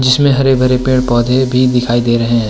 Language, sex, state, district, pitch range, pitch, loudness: Hindi, male, Uttarakhand, Tehri Garhwal, 120-130 Hz, 125 Hz, -12 LUFS